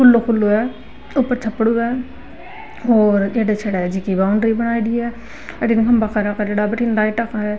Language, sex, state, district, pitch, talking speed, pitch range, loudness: Marwari, female, Rajasthan, Nagaur, 225 Hz, 55 wpm, 210-235 Hz, -18 LUFS